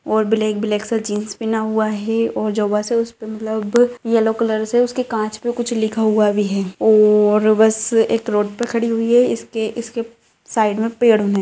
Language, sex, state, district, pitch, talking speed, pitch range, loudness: Hindi, female, Bihar, Lakhisarai, 220 Hz, 205 wpm, 215-230 Hz, -18 LUFS